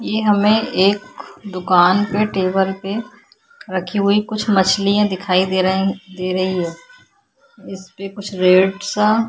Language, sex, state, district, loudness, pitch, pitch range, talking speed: Hindi, female, Chhattisgarh, Korba, -17 LUFS, 200 Hz, 185-215 Hz, 135 wpm